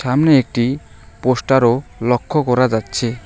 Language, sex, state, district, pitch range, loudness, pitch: Bengali, male, West Bengal, Alipurduar, 115-135 Hz, -16 LUFS, 125 Hz